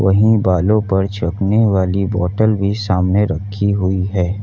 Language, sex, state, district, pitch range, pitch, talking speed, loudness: Hindi, male, Uttar Pradesh, Lalitpur, 95-105 Hz, 100 Hz, 150 wpm, -16 LUFS